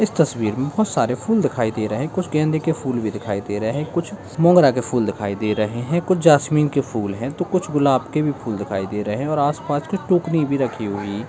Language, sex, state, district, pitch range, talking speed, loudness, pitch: Hindi, male, Bihar, Jahanabad, 110-160 Hz, 265 wpm, -20 LUFS, 140 Hz